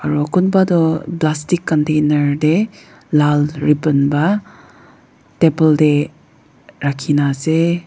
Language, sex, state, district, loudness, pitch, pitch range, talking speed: Nagamese, female, Nagaland, Dimapur, -16 LUFS, 155 Hz, 150-170 Hz, 100 wpm